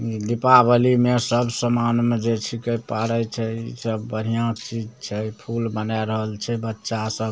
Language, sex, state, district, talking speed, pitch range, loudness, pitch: Maithili, male, Bihar, Samastipur, 170 wpm, 110-120 Hz, -22 LUFS, 115 Hz